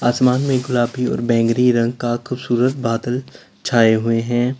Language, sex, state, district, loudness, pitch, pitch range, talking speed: Hindi, male, Uttar Pradesh, Lalitpur, -18 LUFS, 120 Hz, 115-125 Hz, 155 wpm